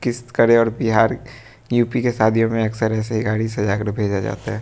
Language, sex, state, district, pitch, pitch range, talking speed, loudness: Hindi, male, Bihar, West Champaran, 115 Hz, 110-120 Hz, 155 wpm, -19 LUFS